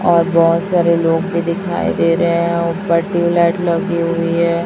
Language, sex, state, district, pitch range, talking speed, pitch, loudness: Hindi, female, Chhattisgarh, Raipur, 170-175 Hz, 180 wpm, 170 Hz, -15 LUFS